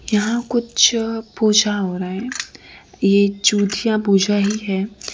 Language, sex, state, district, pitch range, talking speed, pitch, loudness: Hindi, female, Gujarat, Valsad, 200-225 Hz, 130 wpm, 210 Hz, -18 LUFS